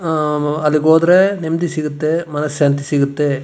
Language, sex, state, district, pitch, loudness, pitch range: Kannada, male, Karnataka, Chamarajanagar, 150 Hz, -16 LUFS, 145-160 Hz